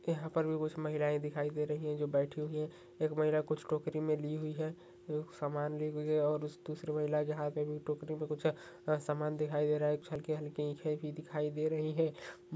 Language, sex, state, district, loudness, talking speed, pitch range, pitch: Hindi, male, Uttar Pradesh, Hamirpur, -37 LUFS, 240 wpm, 150-155 Hz, 150 Hz